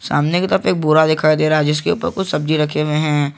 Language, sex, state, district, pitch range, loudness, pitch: Hindi, male, Jharkhand, Garhwa, 150-155 Hz, -16 LUFS, 155 Hz